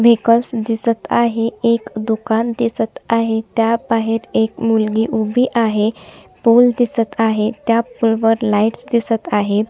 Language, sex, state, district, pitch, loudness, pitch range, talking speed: Hindi, female, Chhattisgarh, Sukma, 225 Hz, -16 LUFS, 220-230 Hz, 125 wpm